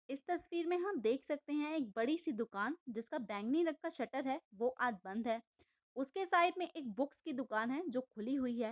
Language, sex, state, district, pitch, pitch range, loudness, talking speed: Hindi, female, Maharashtra, Aurangabad, 270 Hz, 235-320 Hz, -39 LUFS, 235 wpm